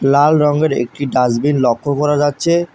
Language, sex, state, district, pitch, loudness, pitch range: Bengali, male, West Bengal, Alipurduar, 145 Hz, -15 LUFS, 135-150 Hz